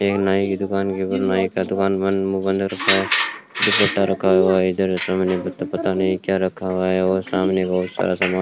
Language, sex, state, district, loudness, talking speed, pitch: Hindi, male, Rajasthan, Bikaner, -19 LUFS, 215 wpm, 95 Hz